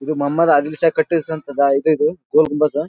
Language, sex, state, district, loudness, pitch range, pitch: Kannada, male, Karnataka, Bijapur, -17 LUFS, 145-160 Hz, 155 Hz